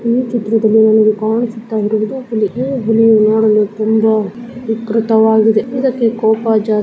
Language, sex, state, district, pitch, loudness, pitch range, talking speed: Kannada, female, Karnataka, Bellary, 220 Hz, -13 LUFS, 215-230 Hz, 125 wpm